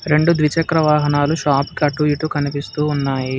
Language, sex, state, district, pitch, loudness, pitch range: Telugu, male, Telangana, Hyderabad, 150 Hz, -17 LUFS, 145-155 Hz